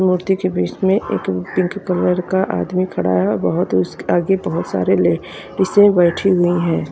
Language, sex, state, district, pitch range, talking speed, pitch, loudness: Hindi, female, Haryana, Rohtak, 165-190 Hz, 190 wpm, 180 Hz, -17 LUFS